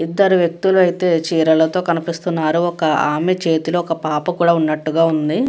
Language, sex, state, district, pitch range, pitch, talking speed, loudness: Telugu, female, Andhra Pradesh, Guntur, 160-175 Hz, 165 Hz, 140 wpm, -16 LUFS